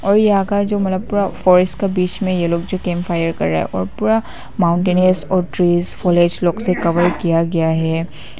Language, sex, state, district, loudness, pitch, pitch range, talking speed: Hindi, female, Arunachal Pradesh, Papum Pare, -17 LUFS, 175 Hz, 170-190 Hz, 180 wpm